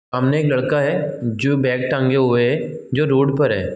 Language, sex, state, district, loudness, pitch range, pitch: Hindi, male, Uttar Pradesh, Gorakhpur, -18 LUFS, 125-145 Hz, 135 Hz